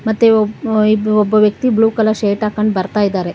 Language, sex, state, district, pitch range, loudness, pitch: Kannada, female, Karnataka, Bangalore, 210-220 Hz, -14 LUFS, 215 Hz